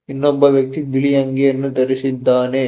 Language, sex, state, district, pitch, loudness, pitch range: Kannada, male, Karnataka, Bangalore, 135 Hz, -16 LUFS, 130-140 Hz